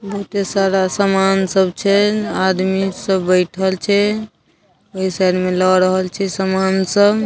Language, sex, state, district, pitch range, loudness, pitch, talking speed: Maithili, female, Bihar, Darbhanga, 185-200 Hz, -16 LUFS, 190 Hz, 140 wpm